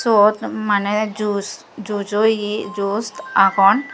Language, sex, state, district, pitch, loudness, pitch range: Chakma, female, Tripura, Dhalai, 210 Hz, -18 LUFS, 205-215 Hz